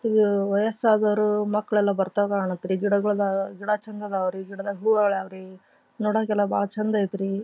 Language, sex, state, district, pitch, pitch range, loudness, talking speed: Kannada, female, Karnataka, Dharwad, 205 Hz, 195-210 Hz, -24 LUFS, 160 wpm